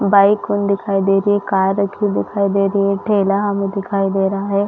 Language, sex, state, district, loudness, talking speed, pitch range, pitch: Hindi, female, Chhattisgarh, Rajnandgaon, -17 LUFS, 245 wpm, 195-200 Hz, 200 Hz